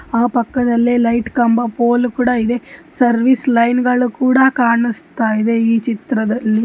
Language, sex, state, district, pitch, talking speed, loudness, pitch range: Kannada, female, Karnataka, Mysore, 240 Hz, 135 wpm, -15 LUFS, 230-250 Hz